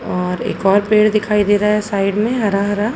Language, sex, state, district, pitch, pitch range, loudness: Hindi, female, Uttar Pradesh, Hamirpur, 205 Hz, 200-215 Hz, -16 LUFS